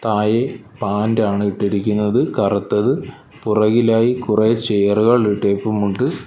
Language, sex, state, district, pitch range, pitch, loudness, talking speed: Malayalam, male, Kerala, Kollam, 105-120 Hz, 110 Hz, -17 LUFS, 75 wpm